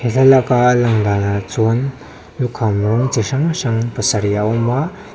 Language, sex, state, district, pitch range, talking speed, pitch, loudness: Mizo, male, Mizoram, Aizawl, 110-130 Hz, 150 wpm, 120 Hz, -16 LUFS